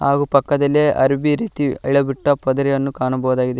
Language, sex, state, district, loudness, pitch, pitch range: Kannada, male, Karnataka, Koppal, -18 LUFS, 140 Hz, 130-145 Hz